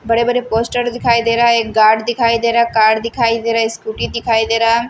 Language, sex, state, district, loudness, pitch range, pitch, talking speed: Hindi, female, Maharashtra, Washim, -14 LUFS, 225-235 Hz, 230 Hz, 255 wpm